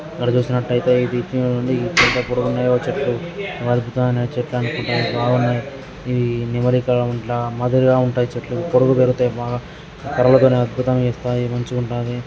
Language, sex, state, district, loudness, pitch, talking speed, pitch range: Telugu, male, Andhra Pradesh, Srikakulam, -19 LUFS, 125 Hz, 135 wpm, 120-125 Hz